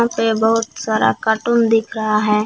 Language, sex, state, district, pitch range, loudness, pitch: Hindi, female, Jharkhand, Palamu, 210-225 Hz, -17 LUFS, 220 Hz